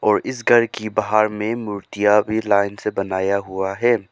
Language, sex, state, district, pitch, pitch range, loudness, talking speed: Hindi, male, Arunachal Pradesh, Lower Dibang Valley, 105 Hz, 100-110 Hz, -19 LUFS, 190 wpm